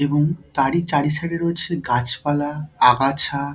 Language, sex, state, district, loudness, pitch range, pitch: Bengali, male, West Bengal, Dakshin Dinajpur, -20 LUFS, 140-165 Hz, 145 Hz